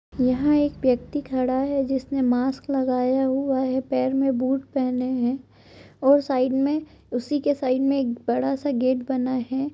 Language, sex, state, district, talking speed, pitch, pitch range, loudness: Hindi, female, Chhattisgarh, Korba, 180 wpm, 265 Hz, 255-275 Hz, -23 LUFS